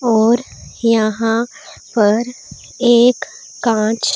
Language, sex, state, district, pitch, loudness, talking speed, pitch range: Hindi, female, Punjab, Pathankot, 230 Hz, -15 LUFS, 70 wpm, 225-245 Hz